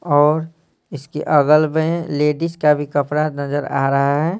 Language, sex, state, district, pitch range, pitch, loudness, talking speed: Hindi, male, Bihar, Patna, 145-155 Hz, 150 Hz, -17 LUFS, 165 wpm